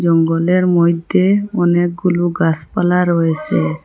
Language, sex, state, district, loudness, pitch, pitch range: Bengali, female, Assam, Hailakandi, -15 LUFS, 175 Hz, 165-180 Hz